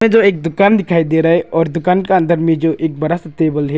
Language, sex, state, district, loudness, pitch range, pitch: Hindi, male, Arunachal Pradesh, Longding, -14 LUFS, 160-180 Hz, 165 Hz